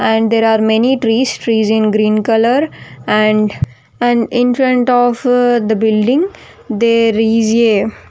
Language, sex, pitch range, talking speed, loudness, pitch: English, female, 220-245 Hz, 150 wpm, -13 LUFS, 225 Hz